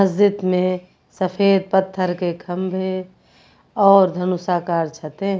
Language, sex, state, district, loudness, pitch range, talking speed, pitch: Hindi, female, Uttar Pradesh, Lucknow, -19 LUFS, 180-195 Hz, 110 wpm, 185 Hz